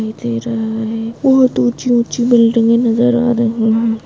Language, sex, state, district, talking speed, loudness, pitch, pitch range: Hindi, female, Maharashtra, Solapur, 135 wpm, -14 LUFS, 230 Hz, 225-240 Hz